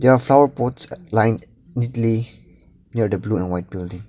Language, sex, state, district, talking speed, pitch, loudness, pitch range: English, male, Nagaland, Dimapur, 160 wpm, 110 Hz, -20 LUFS, 90-120 Hz